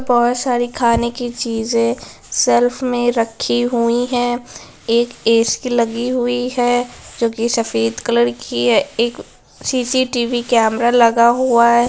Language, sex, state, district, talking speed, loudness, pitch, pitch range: Hindi, female, Bihar, Jamui, 130 wpm, -16 LUFS, 240 Hz, 230-245 Hz